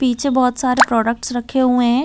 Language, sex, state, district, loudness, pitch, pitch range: Hindi, female, Chhattisgarh, Balrampur, -16 LUFS, 250 Hz, 240-260 Hz